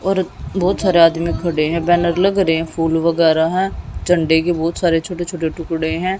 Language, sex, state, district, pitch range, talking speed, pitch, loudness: Hindi, female, Haryana, Jhajjar, 165-180 Hz, 205 wpm, 170 Hz, -17 LUFS